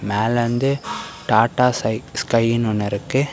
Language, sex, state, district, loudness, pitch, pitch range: Tamil, male, Tamil Nadu, Kanyakumari, -20 LUFS, 120 Hz, 110-135 Hz